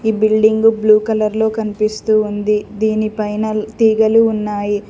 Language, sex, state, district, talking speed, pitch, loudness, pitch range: Telugu, female, Telangana, Mahabubabad, 120 wpm, 215 Hz, -15 LUFS, 210-220 Hz